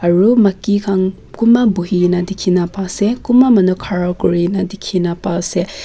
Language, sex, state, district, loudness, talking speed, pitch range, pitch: Nagamese, female, Nagaland, Kohima, -15 LUFS, 175 wpm, 180-205 Hz, 185 Hz